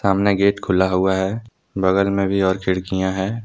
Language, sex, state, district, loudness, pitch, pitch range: Hindi, male, Jharkhand, Deoghar, -19 LUFS, 95 Hz, 95-100 Hz